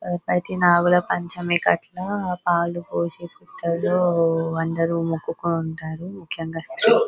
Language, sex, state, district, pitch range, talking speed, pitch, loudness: Telugu, female, Telangana, Nalgonda, 165-180 Hz, 85 wpm, 175 Hz, -22 LUFS